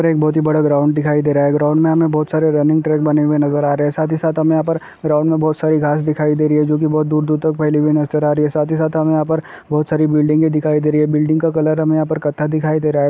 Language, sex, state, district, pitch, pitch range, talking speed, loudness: Hindi, male, Uttar Pradesh, Deoria, 155 Hz, 150-155 Hz, 330 wpm, -15 LUFS